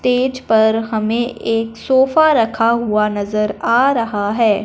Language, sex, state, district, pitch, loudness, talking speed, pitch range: Hindi, female, Punjab, Fazilka, 225 Hz, -16 LUFS, 140 wpm, 215-245 Hz